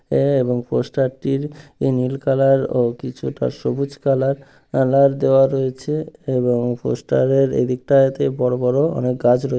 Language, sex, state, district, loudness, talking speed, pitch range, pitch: Bengali, male, West Bengal, Malda, -19 LUFS, 140 wpm, 125-140 Hz, 135 Hz